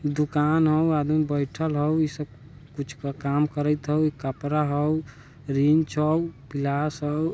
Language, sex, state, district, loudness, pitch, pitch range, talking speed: Bajjika, male, Bihar, Vaishali, -25 LUFS, 150 Hz, 140-155 Hz, 145 wpm